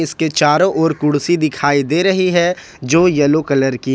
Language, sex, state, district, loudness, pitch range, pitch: Hindi, male, Jharkhand, Ranchi, -14 LUFS, 145-170 Hz, 155 Hz